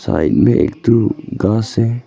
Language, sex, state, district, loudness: Hindi, male, Arunachal Pradesh, Longding, -15 LUFS